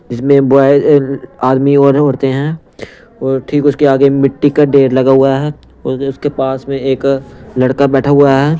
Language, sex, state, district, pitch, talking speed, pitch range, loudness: Hindi, male, Punjab, Pathankot, 135 Hz, 175 wpm, 135-140 Hz, -11 LUFS